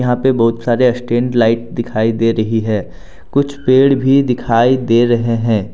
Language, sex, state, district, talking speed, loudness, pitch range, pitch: Hindi, male, Jharkhand, Deoghar, 180 wpm, -14 LUFS, 115-125 Hz, 120 Hz